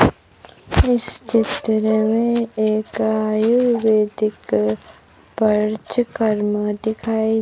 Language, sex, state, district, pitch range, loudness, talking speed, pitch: Hindi, female, Madhya Pradesh, Bhopal, 215-225 Hz, -19 LUFS, 50 wpm, 220 Hz